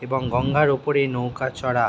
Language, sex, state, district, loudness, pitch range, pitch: Bengali, male, West Bengal, Jhargram, -22 LUFS, 125-140 Hz, 130 Hz